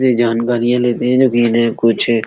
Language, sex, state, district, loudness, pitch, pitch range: Hindi, male, Uttar Pradesh, Etah, -14 LUFS, 120 Hz, 115-125 Hz